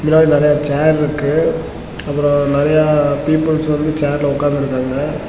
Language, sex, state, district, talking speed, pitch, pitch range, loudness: Tamil, male, Tamil Nadu, Namakkal, 135 wpm, 150 Hz, 145-155 Hz, -15 LUFS